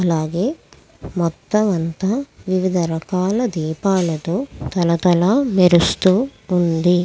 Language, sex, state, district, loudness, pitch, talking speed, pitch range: Telugu, female, Andhra Pradesh, Krishna, -18 LUFS, 180 Hz, 75 wpm, 165-195 Hz